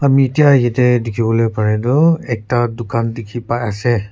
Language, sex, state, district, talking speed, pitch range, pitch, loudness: Nagamese, male, Nagaland, Kohima, 145 wpm, 115-130 Hz, 120 Hz, -15 LUFS